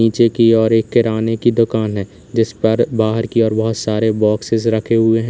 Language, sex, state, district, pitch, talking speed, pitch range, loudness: Hindi, male, Uttar Pradesh, Lalitpur, 115 Hz, 215 wpm, 110-115 Hz, -15 LUFS